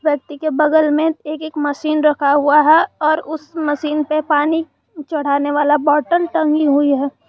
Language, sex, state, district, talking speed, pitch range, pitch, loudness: Hindi, male, Jharkhand, Garhwa, 175 wpm, 295-315 Hz, 300 Hz, -16 LUFS